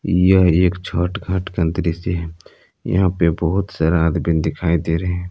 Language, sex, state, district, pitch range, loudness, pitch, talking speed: Hindi, male, Jharkhand, Palamu, 85-90 Hz, -18 LUFS, 90 Hz, 180 wpm